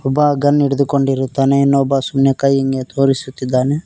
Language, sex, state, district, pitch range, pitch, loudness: Kannada, male, Karnataka, Koppal, 135-140 Hz, 135 Hz, -15 LUFS